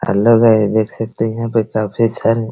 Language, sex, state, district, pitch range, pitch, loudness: Hindi, male, Bihar, Araria, 110-115 Hz, 115 Hz, -15 LUFS